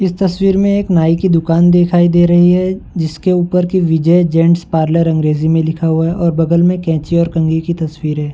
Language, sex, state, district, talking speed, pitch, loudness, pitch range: Hindi, male, Uttar Pradesh, Varanasi, 225 wpm, 170 Hz, -13 LUFS, 160-180 Hz